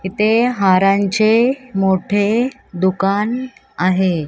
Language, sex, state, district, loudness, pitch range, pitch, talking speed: Marathi, female, Maharashtra, Mumbai Suburban, -16 LUFS, 190-235 Hz, 200 Hz, 70 wpm